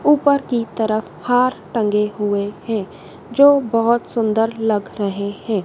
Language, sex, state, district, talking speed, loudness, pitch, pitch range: Hindi, female, Madhya Pradesh, Dhar, 140 wpm, -18 LUFS, 225 Hz, 210-245 Hz